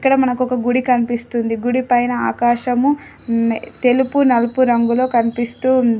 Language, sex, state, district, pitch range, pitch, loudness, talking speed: Telugu, female, Telangana, Adilabad, 235-255 Hz, 245 Hz, -17 LUFS, 130 wpm